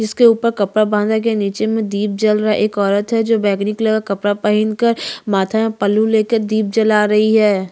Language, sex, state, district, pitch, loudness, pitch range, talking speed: Hindi, female, Chhattisgarh, Bastar, 215 Hz, -16 LUFS, 205-220 Hz, 225 wpm